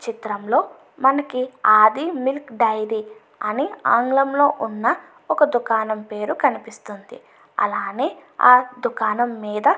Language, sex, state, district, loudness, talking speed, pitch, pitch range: Telugu, female, Andhra Pradesh, Anantapur, -20 LUFS, 105 wpm, 240 Hz, 220-280 Hz